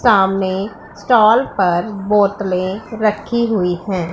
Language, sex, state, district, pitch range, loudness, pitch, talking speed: Hindi, female, Punjab, Pathankot, 190-220 Hz, -16 LUFS, 200 Hz, 100 wpm